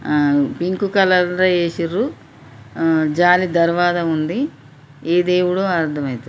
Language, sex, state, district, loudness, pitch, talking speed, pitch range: Telugu, female, Telangana, Nalgonda, -17 LUFS, 170 Hz, 115 wpm, 145-180 Hz